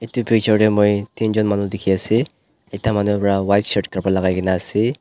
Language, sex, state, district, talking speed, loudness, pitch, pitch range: Nagamese, male, Nagaland, Dimapur, 225 wpm, -18 LUFS, 105 Hz, 100-110 Hz